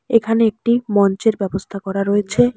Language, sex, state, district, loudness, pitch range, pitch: Bengali, male, West Bengal, Alipurduar, -18 LUFS, 195-230 Hz, 210 Hz